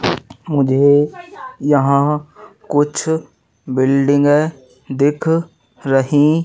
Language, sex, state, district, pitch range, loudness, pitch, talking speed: Hindi, male, Madhya Pradesh, Katni, 140-160 Hz, -16 LUFS, 145 Hz, 55 wpm